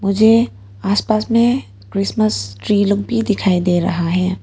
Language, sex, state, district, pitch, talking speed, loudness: Hindi, female, Arunachal Pradesh, Papum Pare, 185 Hz, 150 wpm, -17 LUFS